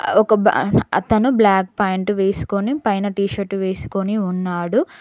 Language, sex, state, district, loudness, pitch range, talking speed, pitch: Telugu, female, Telangana, Mahabubabad, -18 LUFS, 195-215 Hz, 130 wpm, 200 Hz